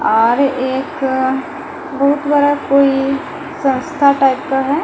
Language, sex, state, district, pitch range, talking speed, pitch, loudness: Hindi, female, Bihar, Patna, 270-290 Hz, 110 wpm, 275 Hz, -15 LUFS